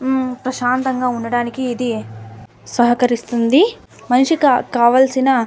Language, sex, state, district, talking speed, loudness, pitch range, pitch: Telugu, female, Andhra Pradesh, Anantapur, 75 wpm, -16 LUFS, 235-260 Hz, 250 Hz